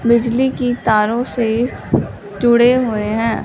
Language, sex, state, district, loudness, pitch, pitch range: Hindi, female, Punjab, Fazilka, -16 LUFS, 235 Hz, 225-245 Hz